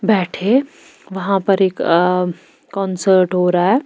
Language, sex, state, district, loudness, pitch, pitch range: Hindi, female, Bihar, Patna, -16 LUFS, 190 Hz, 180-200 Hz